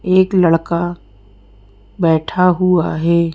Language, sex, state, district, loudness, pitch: Hindi, female, Madhya Pradesh, Bhopal, -15 LUFS, 170 Hz